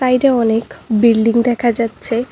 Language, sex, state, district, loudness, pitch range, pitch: Bengali, female, West Bengal, Cooch Behar, -15 LUFS, 230-245 Hz, 235 Hz